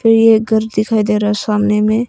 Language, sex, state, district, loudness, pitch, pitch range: Hindi, female, Arunachal Pradesh, Longding, -14 LUFS, 215 Hz, 210-225 Hz